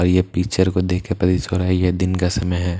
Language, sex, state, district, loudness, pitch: Hindi, male, Bihar, Katihar, -19 LUFS, 90 Hz